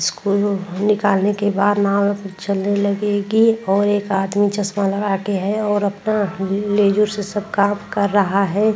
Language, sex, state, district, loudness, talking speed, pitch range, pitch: Hindi, female, Uttar Pradesh, Muzaffarnagar, -18 LUFS, 160 wpm, 200-205 Hz, 205 Hz